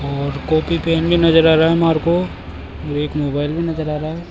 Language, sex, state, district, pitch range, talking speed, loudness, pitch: Hindi, male, Rajasthan, Jaipur, 145-165 Hz, 235 wpm, -17 LUFS, 155 Hz